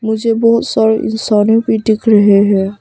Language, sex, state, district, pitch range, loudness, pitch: Hindi, female, Arunachal Pradesh, Papum Pare, 210-225 Hz, -12 LUFS, 220 Hz